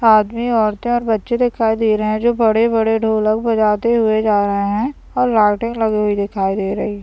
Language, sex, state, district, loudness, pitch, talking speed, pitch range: Hindi, male, Bihar, Madhepura, -16 LUFS, 220 Hz, 205 wpm, 210-230 Hz